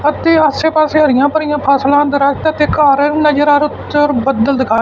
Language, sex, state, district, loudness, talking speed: Punjabi, male, Punjab, Fazilka, -12 LUFS, 200 wpm